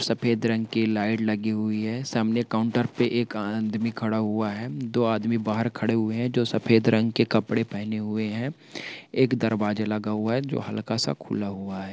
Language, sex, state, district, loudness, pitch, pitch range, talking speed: Hindi, male, Bihar, Purnia, -26 LUFS, 110 Hz, 110-115 Hz, 200 wpm